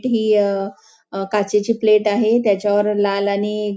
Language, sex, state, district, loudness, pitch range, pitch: Marathi, female, Maharashtra, Nagpur, -18 LUFS, 200-215 Hz, 210 Hz